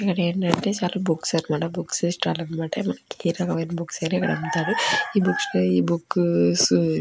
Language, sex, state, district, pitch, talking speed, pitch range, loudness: Telugu, female, Andhra Pradesh, Chittoor, 170 Hz, 135 wpm, 150-185 Hz, -23 LUFS